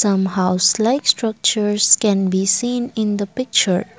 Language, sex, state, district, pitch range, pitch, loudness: English, female, Assam, Kamrup Metropolitan, 190-230 Hz, 210 Hz, -17 LUFS